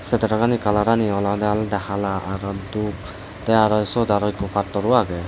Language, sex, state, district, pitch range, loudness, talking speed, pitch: Chakma, male, Tripura, Dhalai, 100-110 Hz, -21 LUFS, 180 wpm, 105 Hz